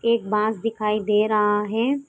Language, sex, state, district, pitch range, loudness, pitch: Hindi, female, Jharkhand, Sahebganj, 210-230 Hz, -22 LUFS, 215 Hz